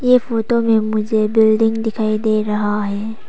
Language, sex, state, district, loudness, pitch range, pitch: Hindi, female, Arunachal Pradesh, Papum Pare, -17 LUFS, 215-225 Hz, 220 Hz